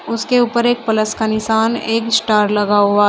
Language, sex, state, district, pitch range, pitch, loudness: Hindi, female, Uttar Pradesh, Shamli, 215-230 Hz, 220 Hz, -15 LUFS